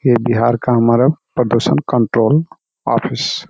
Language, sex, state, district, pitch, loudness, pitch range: Hindi, male, Bihar, Jamui, 120 Hz, -15 LUFS, 115-130 Hz